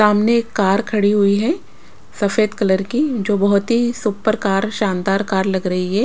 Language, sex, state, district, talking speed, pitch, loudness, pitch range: Hindi, female, Punjab, Pathankot, 190 wpm, 205 Hz, -17 LUFS, 195-220 Hz